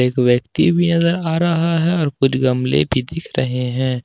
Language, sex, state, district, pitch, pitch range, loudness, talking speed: Hindi, male, Jharkhand, Ranchi, 135 Hz, 125-170 Hz, -17 LUFS, 210 wpm